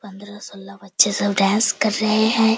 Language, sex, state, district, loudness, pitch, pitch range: Hindi, female, Bihar, Sitamarhi, -18 LUFS, 205 Hz, 200-215 Hz